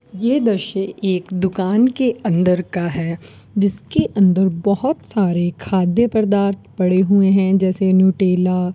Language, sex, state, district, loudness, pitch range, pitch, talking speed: Hindi, female, Rajasthan, Bikaner, -17 LUFS, 180-200 Hz, 190 Hz, 135 wpm